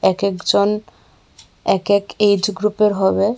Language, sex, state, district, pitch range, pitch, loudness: Bengali, female, Tripura, West Tripura, 195-210 Hz, 200 Hz, -17 LUFS